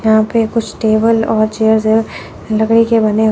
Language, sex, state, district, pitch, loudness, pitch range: Hindi, female, Chandigarh, Chandigarh, 220 Hz, -13 LUFS, 220-225 Hz